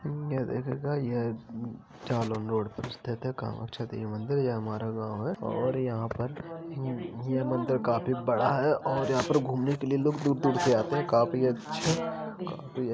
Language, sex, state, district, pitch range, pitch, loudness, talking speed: Hindi, male, Uttar Pradesh, Jalaun, 115-140 Hz, 125 Hz, -30 LUFS, 180 wpm